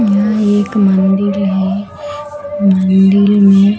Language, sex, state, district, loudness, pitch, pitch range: Hindi, female, Bihar, Katihar, -11 LUFS, 200 Hz, 195-210 Hz